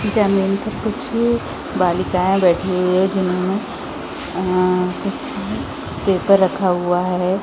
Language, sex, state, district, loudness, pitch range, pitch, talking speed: Hindi, female, Chhattisgarh, Raigarh, -19 LUFS, 180-200 Hz, 190 Hz, 115 wpm